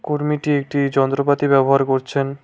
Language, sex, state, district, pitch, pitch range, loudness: Bengali, male, West Bengal, Cooch Behar, 140 Hz, 135-145 Hz, -18 LUFS